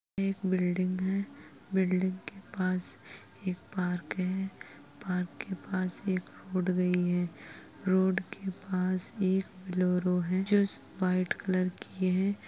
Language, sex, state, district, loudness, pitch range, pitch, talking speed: Hindi, female, Uttar Pradesh, Etah, -30 LUFS, 180-190 Hz, 185 Hz, 135 wpm